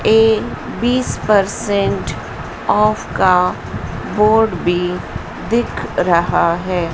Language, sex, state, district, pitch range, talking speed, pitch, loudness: Hindi, female, Madhya Pradesh, Dhar, 180-215 Hz, 85 wpm, 200 Hz, -16 LUFS